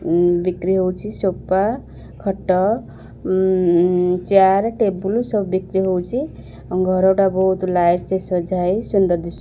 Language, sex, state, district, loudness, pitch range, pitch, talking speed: Odia, female, Odisha, Khordha, -18 LUFS, 180-195 Hz, 185 Hz, 110 wpm